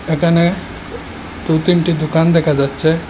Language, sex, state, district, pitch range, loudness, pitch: Bengali, male, Assam, Hailakandi, 155-170 Hz, -15 LUFS, 165 Hz